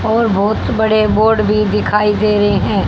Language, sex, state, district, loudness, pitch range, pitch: Hindi, female, Haryana, Jhajjar, -13 LUFS, 210-220 Hz, 210 Hz